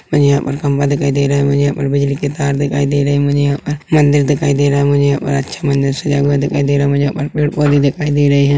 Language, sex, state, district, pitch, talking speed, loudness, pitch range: Hindi, male, Chhattisgarh, Rajnandgaon, 140 Hz, 320 wpm, -14 LUFS, 140-145 Hz